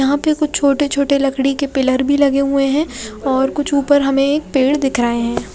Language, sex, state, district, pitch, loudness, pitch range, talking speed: Hindi, female, Bihar, Katihar, 275 Hz, -16 LUFS, 270-285 Hz, 215 wpm